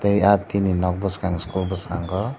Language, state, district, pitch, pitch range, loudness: Kokborok, Tripura, Dhalai, 95 Hz, 90-100 Hz, -22 LUFS